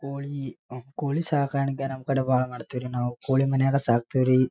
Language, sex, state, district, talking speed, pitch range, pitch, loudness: Kannada, male, Karnataka, Raichur, 160 wpm, 125-140 Hz, 135 Hz, -26 LUFS